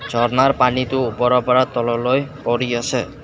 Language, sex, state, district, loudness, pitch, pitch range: Assamese, male, Assam, Kamrup Metropolitan, -18 LUFS, 125 Hz, 120-130 Hz